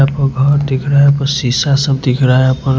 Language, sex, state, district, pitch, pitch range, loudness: Hindi, male, Punjab, Kapurthala, 135 Hz, 130-140 Hz, -12 LUFS